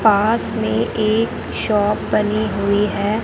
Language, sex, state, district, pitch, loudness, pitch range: Hindi, male, Rajasthan, Bikaner, 210 Hz, -18 LUFS, 200-215 Hz